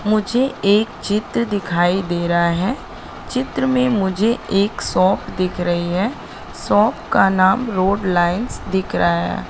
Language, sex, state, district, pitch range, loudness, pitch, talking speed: Hindi, female, Madhya Pradesh, Katni, 180-225 Hz, -18 LUFS, 195 Hz, 145 wpm